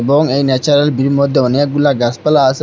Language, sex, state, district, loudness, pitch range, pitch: Bengali, male, Assam, Hailakandi, -13 LUFS, 130-145 Hz, 140 Hz